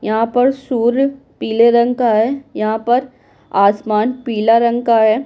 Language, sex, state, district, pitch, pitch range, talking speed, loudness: Hindi, female, Bihar, Kishanganj, 235 Hz, 220-255 Hz, 160 wpm, -15 LUFS